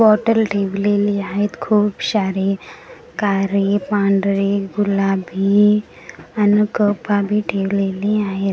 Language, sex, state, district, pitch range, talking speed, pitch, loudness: Marathi, female, Maharashtra, Gondia, 195-210 Hz, 100 wpm, 200 Hz, -18 LUFS